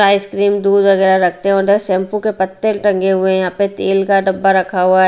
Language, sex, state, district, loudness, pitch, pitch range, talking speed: Hindi, female, Haryana, Rohtak, -14 LUFS, 195 Hz, 190-200 Hz, 235 wpm